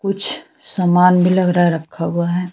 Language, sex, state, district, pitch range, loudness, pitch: Hindi, female, Chhattisgarh, Sukma, 175-195 Hz, -16 LUFS, 180 Hz